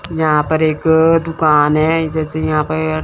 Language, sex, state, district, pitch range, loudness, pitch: Hindi, male, Chandigarh, Chandigarh, 155-160 Hz, -14 LUFS, 155 Hz